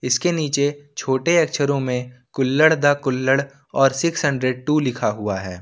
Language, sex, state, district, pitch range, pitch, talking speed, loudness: Hindi, male, Jharkhand, Ranchi, 130-150 Hz, 140 Hz, 160 wpm, -20 LUFS